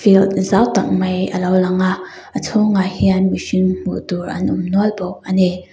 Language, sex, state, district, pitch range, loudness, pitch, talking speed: Mizo, female, Mizoram, Aizawl, 185-195 Hz, -17 LUFS, 185 Hz, 180 wpm